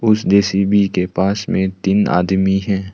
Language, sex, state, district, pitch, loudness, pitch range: Hindi, male, Arunachal Pradesh, Longding, 95 Hz, -16 LUFS, 95-100 Hz